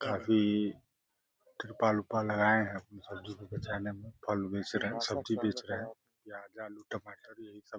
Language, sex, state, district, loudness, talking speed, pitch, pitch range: Hindi, male, Uttar Pradesh, Deoria, -33 LUFS, 175 wpm, 105 Hz, 100-110 Hz